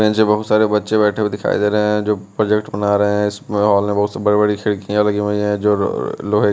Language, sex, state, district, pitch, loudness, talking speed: Hindi, male, Bihar, West Champaran, 105 Hz, -17 LUFS, 255 wpm